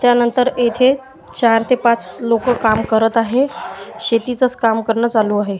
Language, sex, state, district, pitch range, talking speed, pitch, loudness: Marathi, male, Maharashtra, Washim, 225-250 Hz, 150 wpm, 235 Hz, -16 LUFS